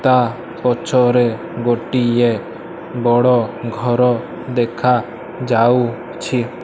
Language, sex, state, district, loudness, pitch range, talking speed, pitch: Odia, male, Odisha, Malkangiri, -17 LUFS, 120-125 Hz, 65 wpm, 120 Hz